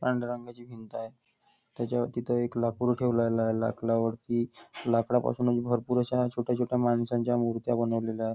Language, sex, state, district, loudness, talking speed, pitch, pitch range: Marathi, male, Maharashtra, Nagpur, -29 LUFS, 150 wpm, 120 Hz, 115-120 Hz